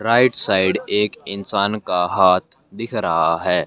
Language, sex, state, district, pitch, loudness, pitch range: Hindi, male, Haryana, Jhajjar, 100 Hz, -18 LUFS, 95-105 Hz